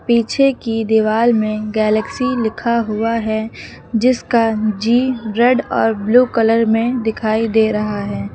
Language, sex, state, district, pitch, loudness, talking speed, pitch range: Hindi, female, Uttar Pradesh, Lucknow, 225 Hz, -16 LUFS, 135 wpm, 215-235 Hz